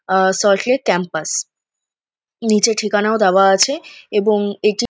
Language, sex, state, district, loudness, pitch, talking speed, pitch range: Bengali, female, West Bengal, North 24 Parganas, -16 LUFS, 210 Hz, 135 wpm, 195-225 Hz